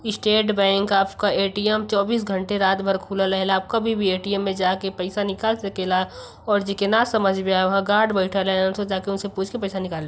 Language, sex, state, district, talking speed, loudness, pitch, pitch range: Bhojpuri, female, Uttar Pradesh, Varanasi, 195 wpm, -22 LUFS, 195 Hz, 190-205 Hz